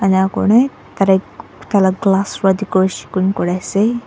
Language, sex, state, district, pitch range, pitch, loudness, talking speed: Nagamese, female, Nagaland, Dimapur, 190-205 Hz, 195 Hz, -16 LUFS, 120 wpm